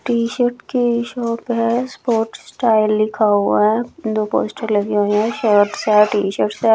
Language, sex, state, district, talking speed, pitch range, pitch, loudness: Hindi, female, Chhattisgarh, Raipur, 160 wpm, 210-235 Hz, 225 Hz, -17 LUFS